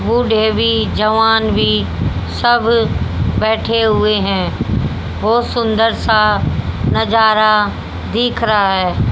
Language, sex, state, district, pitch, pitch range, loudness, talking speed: Hindi, female, Haryana, Jhajjar, 215 Hz, 185-225 Hz, -14 LUFS, 100 wpm